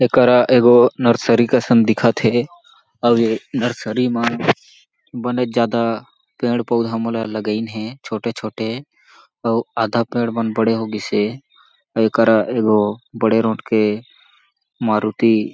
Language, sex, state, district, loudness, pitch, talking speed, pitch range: Chhattisgarhi, male, Chhattisgarh, Jashpur, -18 LUFS, 115 Hz, 125 wpm, 110-120 Hz